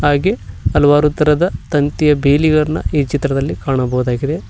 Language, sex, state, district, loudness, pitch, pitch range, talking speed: Kannada, male, Karnataka, Koppal, -15 LUFS, 145 Hz, 135-150 Hz, 105 wpm